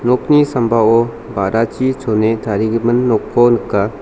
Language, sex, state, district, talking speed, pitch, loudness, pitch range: Garo, male, Meghalaya, South Garo Hills, 105 wpm, 115 Hz, -14 LUFS, 110-125 Hz